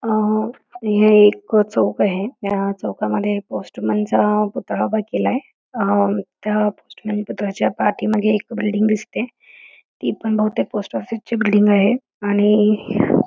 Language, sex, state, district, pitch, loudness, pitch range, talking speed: Marathi, female, Karnataka, Belgaum, 210 Hz, -19 LUFS, 205-215 Hz, 110 wpm